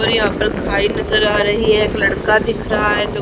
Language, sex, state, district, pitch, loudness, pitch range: Hindi, female, Haryana, Charkhi Dadri, 215 Hz, -15 LUFS, 210-215 Hz